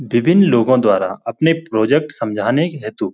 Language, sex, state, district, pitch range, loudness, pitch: Hindi, male, Uttarakhand, Uttarkashi, 115-165 Hz, -16 LUFS, 145 Hz